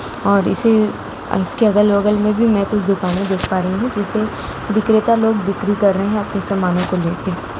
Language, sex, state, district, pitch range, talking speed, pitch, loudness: Hindi, female, Uttar Pradesh, Jalaun, 195-215 Hz, 190 wpm, 205 Hz, -17 LUFS